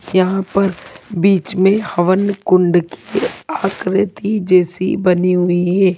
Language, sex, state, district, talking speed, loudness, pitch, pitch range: Hindi, female, Delhi, New Delhi, 120 wpm, -16 LUFS, 185 Hz, 180-195 Hz